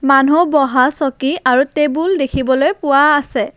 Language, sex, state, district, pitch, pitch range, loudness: Assamese, female, Assam, Kamrup Metropolitan, 280 Hz, 265-300 Hz, -14 LUFS